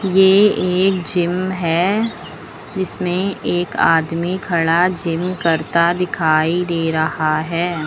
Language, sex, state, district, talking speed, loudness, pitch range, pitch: Hindi, female, Uttar Pradesh, Lucknow, 105 wpm, -17 LUFS, 165-185 Hz, 175 Hz